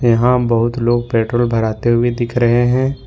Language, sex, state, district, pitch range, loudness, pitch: Hindi, male, Jharkhand, Ranchi, 115-120 Hz, -15 LUFS, 120 Hz